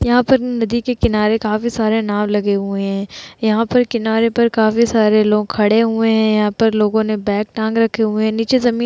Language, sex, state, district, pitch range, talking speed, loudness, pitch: Hindi, female, Uttar Pradesh, Jalaun, 210-230 Hz, 225 wpm, -16 LUFS, 220 Hz